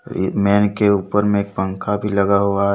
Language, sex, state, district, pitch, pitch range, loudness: Hindi, male, Jharkhand, Deoghar, 100 Hz, 100-105 Hz, -18 LUFS